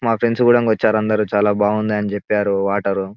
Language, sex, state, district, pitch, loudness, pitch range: Telugu, male, Telangana, Nalgonda, 105 Hz, -17 LUFS, 100-110 Hz